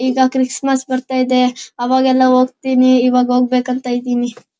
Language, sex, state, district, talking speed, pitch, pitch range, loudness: Kannada, male, Karnataka, Shimoga, 130 wpm, 255 Hz, 250-260 Hz, -15 LUFS